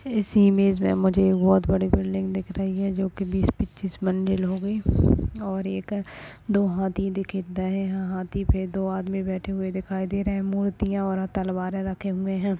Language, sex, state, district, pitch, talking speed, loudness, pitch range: Hindi, male, Maharashtra, Dhule, 190 Hz, 180 wpm, -25 LUFS, 185-195 Hz